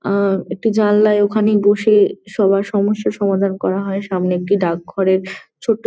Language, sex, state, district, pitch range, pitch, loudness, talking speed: Bengali, female, West Bengal, Jalpaiguri, 190-210 Hz, 200 Hz, -16 LUFS, 155 wpm